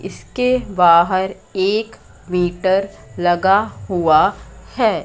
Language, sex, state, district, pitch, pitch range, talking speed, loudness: Hindi, female, Madhya Pradesh, Katni, 190 Hz, 175-200 Hz, 85 wpm, -17 LUFS